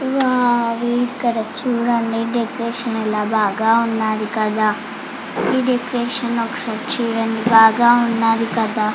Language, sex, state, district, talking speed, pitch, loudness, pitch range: Telugu, female, Andhra Pradesh, Chittoor, 115 wpm, 230 Hz, -18 LUFS, 220-240 Hz